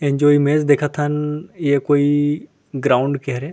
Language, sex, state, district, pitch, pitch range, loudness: Chhattisgarhi, male, Chhattisgarh, Rajnandgaon, 145 Hz, 140-150 Hz, -18 LUFS